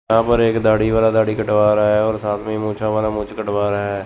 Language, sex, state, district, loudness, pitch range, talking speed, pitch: Hindi, male, Chandigarh, Chandigarh, -17 LUFS, 105-110 Hz, 265 wpm, 110 Hz